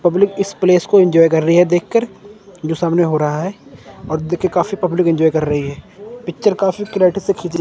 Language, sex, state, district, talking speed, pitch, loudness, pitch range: Hindi, male, Chandigarh, Chandigarh, 215 wpm, 175 Hz, -15 LUFS, 160-195 Hz